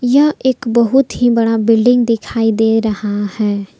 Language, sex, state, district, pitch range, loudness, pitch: Hindi, female, Jharkhand, Palamu, 220-245 Hz, -14 LUFS, 230 Hz